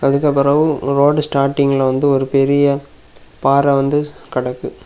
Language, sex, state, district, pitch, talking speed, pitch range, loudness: Tamil, male, Tamil Nadu, Kanyakumari, 140 Hz, 100 wpm, 135-145 Hz, -15 LUFS